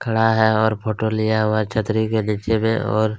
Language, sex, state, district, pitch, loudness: Hindi, male, Chhattisgarh, Kabirdham, 110 Hz, -19 LUFS